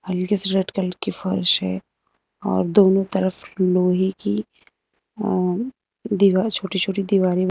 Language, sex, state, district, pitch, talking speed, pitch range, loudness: Hindi, female, Uttar Pradesh, Lucknow, 185 Hz, 135 wpm, 180-195 Hz, -19 LUFS